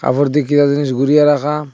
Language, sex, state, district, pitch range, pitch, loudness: Bengali, male, Assam, Hailakandi, 140-150 Hz, 145 Hz, -14 LUFS